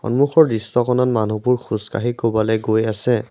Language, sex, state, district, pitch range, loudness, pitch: Assamese, male, Assam, Sonitpur, 110-125 Hz, -18 LUFS, 115 Hz